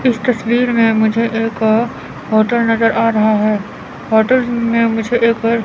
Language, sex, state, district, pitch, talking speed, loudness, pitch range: Hindi, female, Chandigarh, Chandigarh, 225 Hz, 150 wpm, -14 LUFS, 220-235 Hz